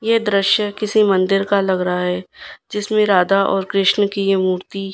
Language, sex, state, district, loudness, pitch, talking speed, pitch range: Hindi, female, Gujarat, Gandhinagar, -17 LUFS, 195 Hz, 180 wpm, 190-210 Hz